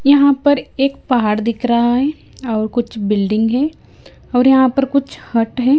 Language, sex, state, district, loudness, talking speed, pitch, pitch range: Hindi, female, Himachal Pradesh, Shimla, -16 LUFS, 175 wpm, 250 Hz, 230-275 Hz